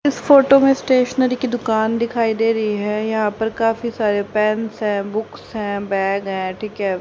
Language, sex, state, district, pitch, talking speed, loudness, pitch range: Hindi, female, Haryana, Rohtak, 220 Hz, 190 wpm, -18 LUFS, 205-235 Hz